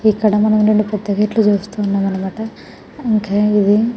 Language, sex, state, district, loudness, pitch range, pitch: Telugu, female, Telangana, Nalgonda, -16 LUFS, 205-215 Hz, 210 Hz